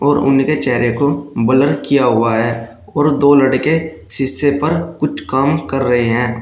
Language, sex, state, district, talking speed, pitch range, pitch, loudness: Hindi, male, Uttar Pradesh, Shamli, 170 wpm, 120-145 Hz, 135 Hz, -14 LUFS